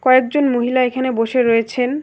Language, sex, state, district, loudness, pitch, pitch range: Bengali, female, West Bengal, Alipurduar, -16 LUFS, 255 Hz, 240-260 Hz